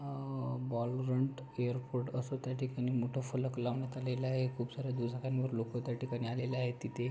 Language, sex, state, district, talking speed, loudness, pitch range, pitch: Marathi, male, Maharashtra, Pune, 175 wpm, -37 LUFS, 125-130 Hz, 125 Hz